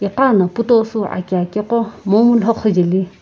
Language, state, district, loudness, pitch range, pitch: Sumi, Nagaland, Kohima, -15 LUFS, 190-230 Hz, 210 Hz